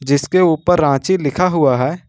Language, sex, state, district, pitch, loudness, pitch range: Hindi, male, Jharkhand, Ranchi, 155 Hz, -15 LUFS, 140-180 Hz